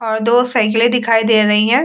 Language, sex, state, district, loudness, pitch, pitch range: Hindi, female, Bihar, Vaishali, -13 LUFS, 225 Hz, 220-240 Hz